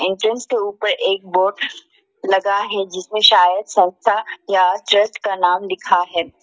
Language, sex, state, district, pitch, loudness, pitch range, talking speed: Hindi, female, Arunachal Pradesh, Lower Dibang Valley, 200 Hz, -17 LUFS, 185-225 Hz, 150 wpm